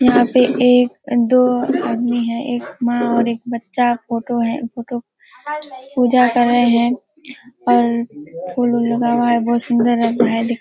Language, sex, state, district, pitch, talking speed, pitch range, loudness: Hindi, female, Bihar, Kishanganj, 240 Hz, 160 wpm, 235-250 Hz, -17 LUFS